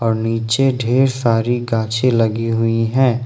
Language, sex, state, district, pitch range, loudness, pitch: Hindi, male, Jharkhand, Ranchi, 115-125 Hz, -17 LUFS, 115 Hz